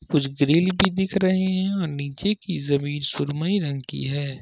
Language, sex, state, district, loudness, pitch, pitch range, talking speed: Hindi, male, Jharkhand, Ranchi, -23 LUFS, 155 Hz, 140-190 Hz, 175 wpm